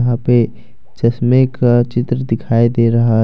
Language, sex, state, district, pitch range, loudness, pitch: Hindi, male, Jharkhand, Deoghar, 115-120 Hz, -14 LUFS, 120 Hz